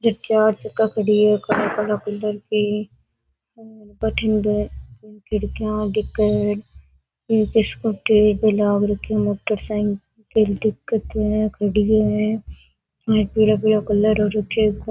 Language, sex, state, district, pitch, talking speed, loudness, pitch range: Rajasthani, female, Rajasthan, Nagaur, 210 Hz, 130 wpm, -20 LUFS, 210-215 Hz